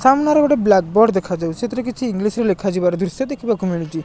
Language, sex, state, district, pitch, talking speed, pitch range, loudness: Odia, male, Odisha, Nuapada, 210 Hz, 195 wpm, 185-255 Hz, -18 LUFS